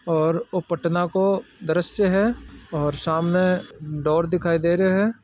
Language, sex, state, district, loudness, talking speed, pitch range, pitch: Marwari, male, Rajasthan, Nagaur, -22 LUFS, 135 wpm, 160-190 Hz, 170 Hz